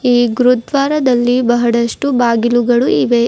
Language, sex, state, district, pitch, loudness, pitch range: Kannada, female, Karnataka, Bidar, 245 Hz, -13 LUFS, 240-250 Hz